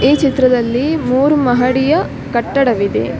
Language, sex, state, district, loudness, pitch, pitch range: Kannada, female, Karnataka, Dakshina Kannada, -14 LUFS, 260 Hz, 245-280 Hz